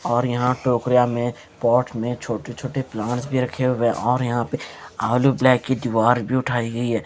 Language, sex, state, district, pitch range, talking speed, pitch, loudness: Hindi, male, Haryana, Jhajjar, 120-130 Hz, 205 wpm, 125 Hz, -21 LUFS